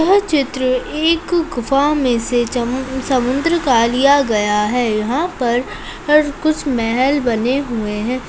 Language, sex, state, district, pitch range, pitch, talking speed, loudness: Hindi, female, Rajasthan, Nagaur, 240-295 Hz, 260 Hz, 130 wpm, -16 LUFS